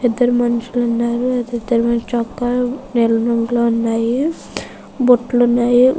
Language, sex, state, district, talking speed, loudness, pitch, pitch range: Telugu, female, Andhra Pradesh, Chittoor, 110 wpm, -17 LUFS, 240 Hz, 235-245 Hz